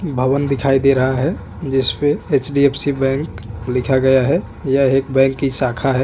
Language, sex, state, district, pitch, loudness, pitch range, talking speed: Hindi, male, Chhattisgarh, Bastar, 135 Hz, -17 LUFS, 130-140 Hz, 210 wpm